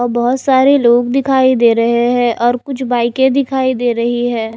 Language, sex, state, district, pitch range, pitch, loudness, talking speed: Hindi, female, Odisha, Nuapada, 240-265 Hz, 245 Hz, -13 LUFS, 195 wpm